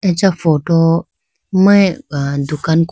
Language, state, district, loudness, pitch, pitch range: Idu Mishmi, Arunachal Pradesh, Lower Dibang Valley, -14 LUFS, 165 Hz, 155-190 Hz